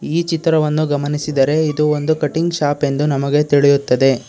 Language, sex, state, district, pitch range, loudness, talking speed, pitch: Kannada, male, Karnataka, Bangalore, 145-155 Hz, -16 LUFS, 140 wpm, 150 Hz